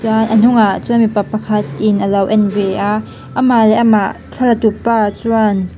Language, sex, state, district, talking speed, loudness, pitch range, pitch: Mizo, female, Mizoram, Aizawl, 195 wpm, -13 LUFS, 205-225 Hz, 215 Hz